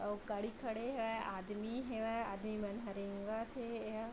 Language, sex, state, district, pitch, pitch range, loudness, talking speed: Chhattisgarhi, female, Chhattisgarh, Bilaspur, 220 Hz, 205-230 Hz, -42 LUFS, 190 wpm